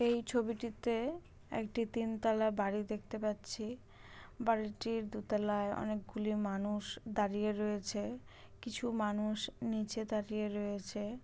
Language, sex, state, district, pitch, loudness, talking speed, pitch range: Bengali, female, West Bengal, Malda, 215 Hz, -38 LUFS, 95 wpm, 210-230 Hz